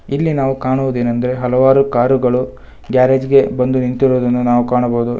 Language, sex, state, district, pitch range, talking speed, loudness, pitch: Kannada, male, Karnataka, Bangalore, 125-135 Hz, 140 wpm, -14 LUFS, 130 Hz